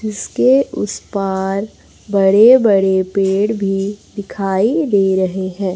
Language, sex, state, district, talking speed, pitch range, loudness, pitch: Hindi, female, Chhattisgarh, Raipur, 115 wpm, 190-210 Hz, -15 LUFS, 195 Hz